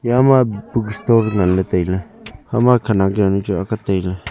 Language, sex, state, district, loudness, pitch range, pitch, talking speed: Wancho, male, Arunachal Pradesh, Longding, -17 LUFS, 95-115 Hz, 105 Hz, 95 wpm